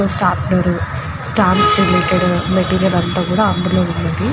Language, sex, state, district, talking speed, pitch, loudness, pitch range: Telugu, female, Andhra Pradesh, Guntur, 150 wpm, 180 Hz, -15 LUFS, 170-185 Hz